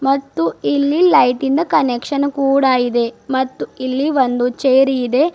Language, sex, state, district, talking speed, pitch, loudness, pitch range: Kannada, female, Karnataka, Bidar, 135 wpm, 265 Hz, -16 LUFS, 245-280 Hz